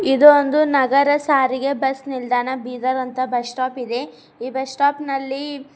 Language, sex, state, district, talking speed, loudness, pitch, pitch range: Kannada, female, Karnataka, Bidar, 155 wpm, -19 LUFS, 265 Hz, 255-280 Hz